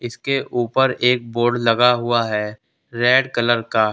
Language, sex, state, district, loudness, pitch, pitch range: Hindi, male, Uttar Pradesh, Lalitpur, -18 LUFS, 120 Hz, 115-125 Hz